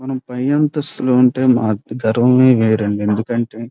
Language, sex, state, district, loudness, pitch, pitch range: Telugu, male, Andhra Pradesh, Krishna, -16 LUFS, 125 Hz, 110-130 Hz